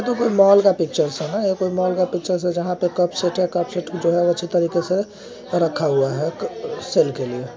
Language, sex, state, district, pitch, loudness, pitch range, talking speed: Hindi, male, Jharkhand, Sahebganj, 180 Hz, -20 LUFS, 170-185 Hz, 215 wpm